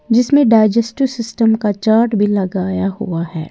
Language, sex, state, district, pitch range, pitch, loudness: Hindi, female, Uttar Pradesh, Lalitpur, 195-230 Hz, 220 Hz, -15 LUFS